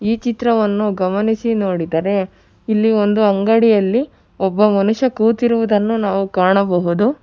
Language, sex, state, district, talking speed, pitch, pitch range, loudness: Kannada, female, Karnataka, Bangalore, 100 wpm, 210 Hz, 195-225 Hz, -16 LUFS